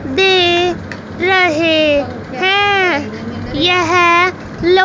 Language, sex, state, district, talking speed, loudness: Hindi, female, Haryana, Rohtak, 60 wpm, -12 LUFS